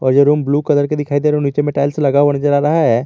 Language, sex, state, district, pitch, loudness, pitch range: Hindi, male, Jharkhand, Garhwa, 145 Hz, -15 LUFS, 140-150 Hz